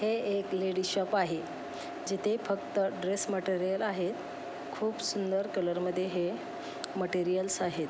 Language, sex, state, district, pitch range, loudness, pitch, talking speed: Marathi, female, Maharashtra, Pune, 180-200 Hz, -33 LUFS, 190 Hz, 130 wpm